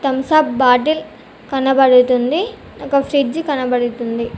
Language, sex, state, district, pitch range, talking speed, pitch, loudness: Telugu, female, Telangana, Komaram Bheem, 250-290 Hz, 80 wpm, 270 Hz, -15 LUFS